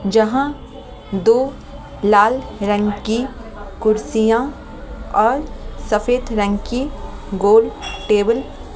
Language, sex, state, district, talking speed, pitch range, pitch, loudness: Hindi, female, Delhi, New Delhi, 90 wpm, 205-245 Hz, 220 Hz, -18 LUFS